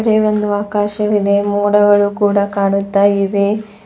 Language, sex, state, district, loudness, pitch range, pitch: Kannada, female, Karnataka, Bidar, -14 LUFS, 200-210 Hz, 205 Hz